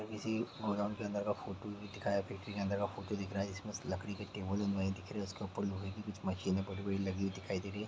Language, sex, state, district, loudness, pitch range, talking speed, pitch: Hindi, male, Bihar, Gopalganj, -39 LUFS, 95-105 Hz, 295 wpm, 100 Hz